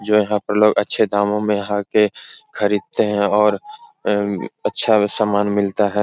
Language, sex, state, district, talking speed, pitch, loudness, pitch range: Hindi, male, Uttar Pradesh, Etah, 170 wpm, 105 Hz, -18 LUFS, 100-105 Hz